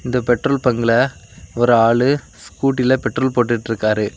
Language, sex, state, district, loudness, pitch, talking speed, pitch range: Tamil, male, Tamil Nadu, Kanyakumari, -17 LUFS, 120 Hz, 115 wpm, 115-130 Hz